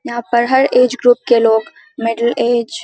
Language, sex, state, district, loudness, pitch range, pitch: Hindi, female, Bihar, Samastipur, -14 LUFS, 235-250 Hz, 240 Hz